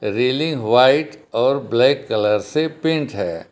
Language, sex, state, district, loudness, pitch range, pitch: Hindi, male, Jharkhand, Palamu, -18 LUFS, 105-155 Hz, 130 Hz